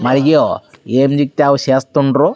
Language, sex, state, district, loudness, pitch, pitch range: Telugu, male, Andhra Pradesh, Sri Satya Sai, -13 LUFS, 140 Hz, 130-145 Hz